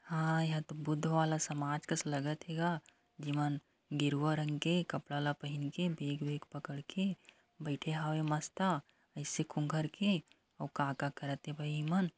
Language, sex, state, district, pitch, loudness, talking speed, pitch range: Hindi, female, Chhattisgarh, Korba, 150 Hz, -37 LUFS, 170 wpm, 145-160 Hz